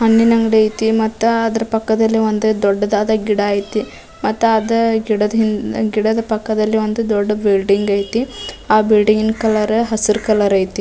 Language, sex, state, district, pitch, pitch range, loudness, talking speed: Kannada, female, Karnataka, Dharwad, 220 Hz, 210-225 Hz, -16 LUFS, 145 wpm